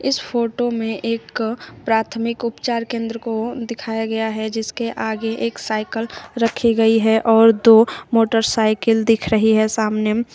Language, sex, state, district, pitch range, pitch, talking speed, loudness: Hindi, female, Uttar Pradesh, Shamli, 220-230 Hz, 225 Hz, 145 wpm, -18 LUFS